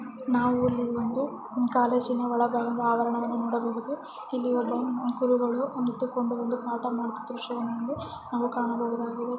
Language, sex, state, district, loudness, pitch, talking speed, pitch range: Kannada, female, Karnataka, Gulbarga, -28 LUFS, 245 Hz, 115 wpm, 235-250 Hz